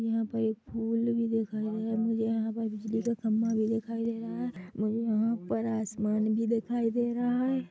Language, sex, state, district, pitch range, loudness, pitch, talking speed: Hindi, female, Chhattisgarh, Bilaspur, 220-230 Hz, -30 LUFS, 225 Hz, 220 wpm